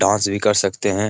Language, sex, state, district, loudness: Hindi, male, Bihar, Jamui, -18 LUFS